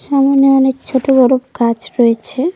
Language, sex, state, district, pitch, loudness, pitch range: Bengali, female, West Bengal, Cooch Behar, 265 Hz, -13 LUFS, 250-275 Hz